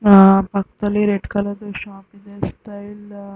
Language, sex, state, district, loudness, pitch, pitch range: Kannada, female, Karnataka, Bijapur, -17 LUFS, 205 Hz, 200-205 Hz